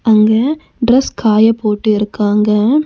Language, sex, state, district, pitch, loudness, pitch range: Tamil, female, Tamil Nadu, Nilgiris, 220 Hz, -13 LUFS, 210-240 Hz